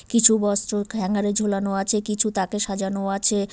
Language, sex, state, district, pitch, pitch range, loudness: Bengali, female, West Bengal, Cooch Behar, 205 Hz, 195-210 Hz, -22 LUFS